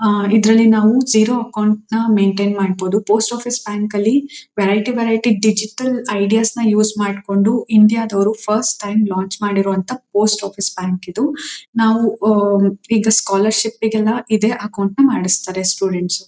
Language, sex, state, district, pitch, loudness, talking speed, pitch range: Kannada, female, Karnataka, Mysore, 215 Hz, -16 LUFS, 145 wpm, 200-225 Hz